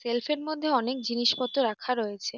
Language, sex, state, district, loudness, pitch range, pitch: Bengali, female, West Bengal, North 24 Parganas, -28 LUFS, 235-275 Hz, 250 Hz